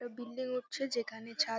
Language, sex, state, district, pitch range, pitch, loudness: Bengali, female, West Bengal, North 24 Parganas, 225-250 Hz, 245 Hz, -38 LUFS